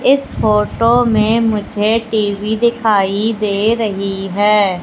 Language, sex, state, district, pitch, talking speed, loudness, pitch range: Hindi, female, Madhya Pradesh, Katni, 215 Hz, 110 wpm, -14 LUFS, 205-225 Hz